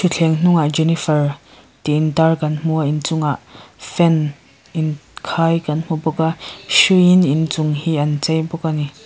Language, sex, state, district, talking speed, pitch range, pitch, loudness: Mizo, female, Mizoram, Aizawl, 150 wpm, 150-165 Hz, 160 Hz, -17 LUFS